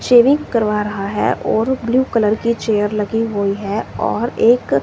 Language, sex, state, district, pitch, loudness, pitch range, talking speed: Hindi, female, Himachal Pradesh, Shimla, 220 Hz, -17 LUFS, 210-235 Hz, 175 wpm